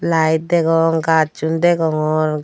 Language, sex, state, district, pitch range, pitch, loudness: Chakma, female, Tripura, Dhalai, 155-165 Hz, 160 Hz, -16 LUFS